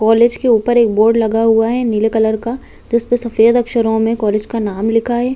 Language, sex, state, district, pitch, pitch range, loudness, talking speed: Hindi, female, Chhattisgarh, Bilaspur, 225 Hz, 220-235 Hz, -14 LUFS, 225 wpm